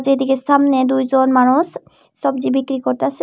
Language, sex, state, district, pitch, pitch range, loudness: Bengali, female, Tripura, Unakoti, 265 Hz, 260-275 Hz, -16 LUFS